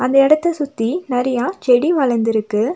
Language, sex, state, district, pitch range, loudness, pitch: Tamil, female, Tamil Nadu, Nilgiris, 235-295 Hz, -17 LUFS, 255 Hz